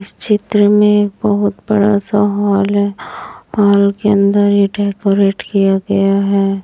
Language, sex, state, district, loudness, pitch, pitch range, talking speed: Hindi, female, Chhattisgarh, Raipur, -13 LUFS, 200 Hz, 200-205 Hz, 145 wpm